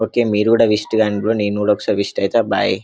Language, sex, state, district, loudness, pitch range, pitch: Telugu, male, Telangana, Karimnagar, -17 LUFS, 105-110 Hz, 105 Hz